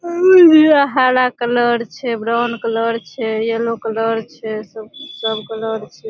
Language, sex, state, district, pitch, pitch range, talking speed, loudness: Maithili, female, Bihar, Supaul, 230 Hz, 225-255 Hz, 120 wpm, -16 LUFS